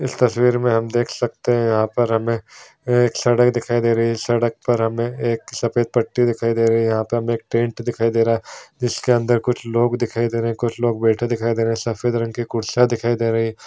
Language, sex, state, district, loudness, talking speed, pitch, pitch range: Hindi, male, Bihar, Supaul, -19 LUFS, 250 wpm, 120 Hz, 115-120 Hz